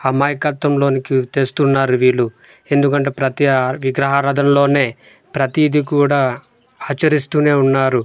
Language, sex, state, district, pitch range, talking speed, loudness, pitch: Telugu, male, Andhra Pradesh, Manyam, 130-145 Hz, 80 wpm, -16 LUFS, 140 Hz